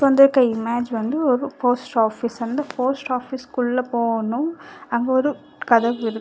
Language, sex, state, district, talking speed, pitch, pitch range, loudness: Tamil, female, Karnataka, Bangalore, 135 wpm, 250 Hz, 235-275 Hz, -21 LUFS